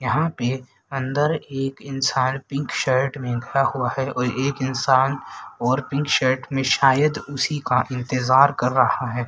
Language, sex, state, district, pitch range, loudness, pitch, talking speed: Hindi, male, Haryana, Rohtak, 125-140 Hz, -21 LUFS, 135 Hz, 160 wpm